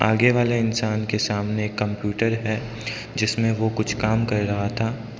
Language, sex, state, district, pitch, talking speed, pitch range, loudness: Hindi, male, Arunachal Pradesh, Lower Dibang Valley, 110 Hz, 160 wpm, 105-115 Hz, -23 LUFS